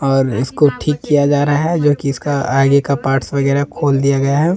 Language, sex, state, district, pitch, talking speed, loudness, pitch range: Hindi, male, Jharkhand, Deoghar, 140 Hz, 250 wpm, -15 LUFS, 135-145 Hz